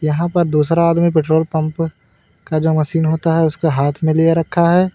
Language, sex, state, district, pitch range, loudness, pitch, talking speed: Hindi, male, Uttar Pradesh, Lalitpur, 155-165 Hz, -16 LUFS, 160 Hz, 205 wpm